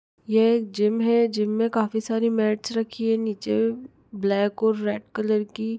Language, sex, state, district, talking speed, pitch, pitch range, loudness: Hindi, female, Chhattisgarh, Rajnandgaon, 175 wpm, 220 Hz, 210-225 Hz, -23 LUFS